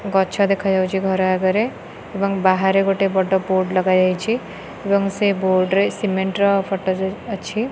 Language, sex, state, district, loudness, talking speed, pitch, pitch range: Odia, female, Odisha, Khordha, -19 LUFS, 140 wpm, 195 Hz, 190-200 Hz